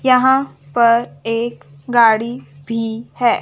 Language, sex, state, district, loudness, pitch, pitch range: Hindi, female, Chandigarh, Chandigarh, -17 LUFS, 230 Hz, 225-240 Hz